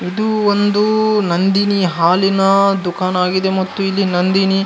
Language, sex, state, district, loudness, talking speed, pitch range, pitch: Kannada, male, Karnataka, Gulbarga, -15 LUFS, 130 wpm, 185-200 Hz, 195 Hz